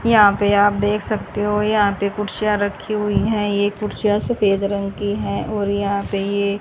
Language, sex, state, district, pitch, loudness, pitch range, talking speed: Hindi, female, Haryana, Rohtak, 205 Hz, -19 LUFS, 200-210 Hz, 200 wpm